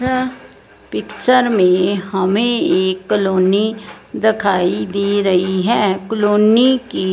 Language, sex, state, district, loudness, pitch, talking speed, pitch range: Hindi, female, Punjab, Fazilka, -15 LUFS, 205 Hz, 100 wpm, 190-225 Hz